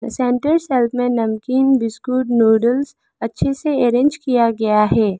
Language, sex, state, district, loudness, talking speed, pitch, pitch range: Hindi, female, Arunachal Pradesh, Lower Dibang Valley, -17 LUFS, 140 wpm, 245 Hz, 230-265 Hz